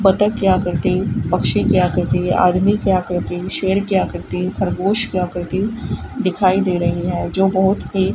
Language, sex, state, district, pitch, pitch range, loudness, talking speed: Hindi, female, Rajasthan, Bikaner, 190 Hz, 180-195 Hz, -17 LUFS, 175 wpm